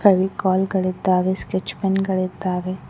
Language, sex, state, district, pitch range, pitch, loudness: Kannada, female, Karnataka, Koppal, 185-190 Hz, 185 Hz, -21 LUFS